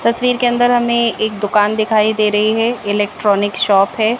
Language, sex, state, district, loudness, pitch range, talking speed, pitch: Hindi, female, Madhya Pradesh, Bhopal, -15 LUFS, 205-235 Hz, 185 wpm, 220 Hz